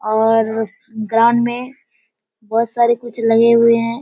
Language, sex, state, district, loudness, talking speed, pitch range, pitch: Hindi, female, Bihar, Kishanganj, -15 LUFS, 135 wpm, 225-235 Hz, 230 Hz